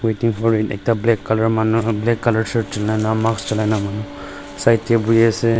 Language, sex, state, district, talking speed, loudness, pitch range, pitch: Nagamese, male, Nagaland, Dimapur, 170 wpm, -18 LUFS, 110-115 Hz, 115 Hz